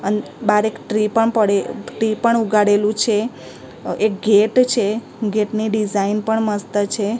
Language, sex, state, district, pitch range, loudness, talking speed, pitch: Gujarati, female, Gujarat, Gandhinagar, 205-220 Hz, -18 LUFS, 160 wpm, 215 Hz